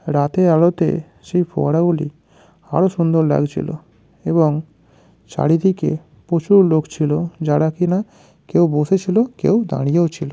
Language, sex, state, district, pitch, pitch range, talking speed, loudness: Bengali, male, West Bengal, North 24 Parganas, 165 Hz, 155-180 Hz, 115 wpm, -17 LUFS